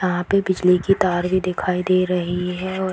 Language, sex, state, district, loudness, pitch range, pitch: Hindi, female, Bihar, Darbhanga, -20 LUFS, 180-185 Hz, 185 Hz